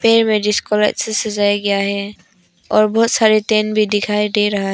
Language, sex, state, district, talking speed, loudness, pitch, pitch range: Hindi, female, Arunachal Pradesh, Papum Pare, 200 wpm, -16 LUFS, 210 Hz, 205-215 Hz